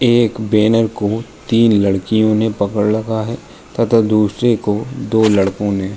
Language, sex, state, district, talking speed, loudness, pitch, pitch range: Hindi, male, Uttar Pradesh, Jalaun, 150 wpm, -15 LUFS, 110 Hz, 105-115 Hz